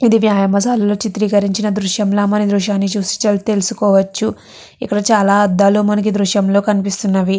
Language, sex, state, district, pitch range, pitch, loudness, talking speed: Telugu, female, Andhra Pradesh, Chittoor, 200-210 Hz, 205 Hz, -15 LUFS, 155 wpm